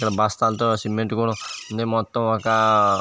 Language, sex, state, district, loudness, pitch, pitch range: Telugu, male, Andhra Pradesh, Visakhapatnam, -21 LUFS, 110 Hz, 110-115 Hz